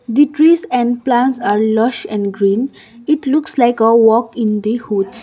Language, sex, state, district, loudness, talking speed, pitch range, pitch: English, female, Sikkim, Gangtok, -14 LUFS, 185 wpm, 220-265 Hz, 235 Hz